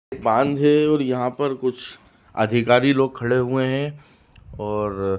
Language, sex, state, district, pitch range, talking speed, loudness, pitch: Hindi, male, Jharkhand, Sahebganj, 120-140 Hz, 140 wpm, -20 LUFS, 125 Hz